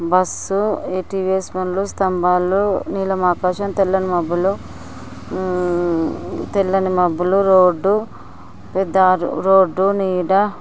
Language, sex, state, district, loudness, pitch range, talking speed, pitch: Telugu, female, Andhra Pradesh, Anantapur, -18 LUFS, 180-195 Hz, 70 wpm, 185 Hz